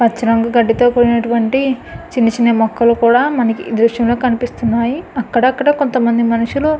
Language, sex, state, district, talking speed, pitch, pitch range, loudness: Telugu, female, Andhra Pradesh, Anantapur, 125 wpm, 235 Hz, 230-255 Hz, -14 LUFS